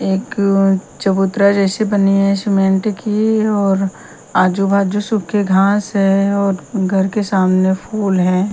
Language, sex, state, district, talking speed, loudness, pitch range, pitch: Hindi, female, Punjab, Kapurthala, 135 wpm, -15 LUFS, 190-205 Hz, 195 Hz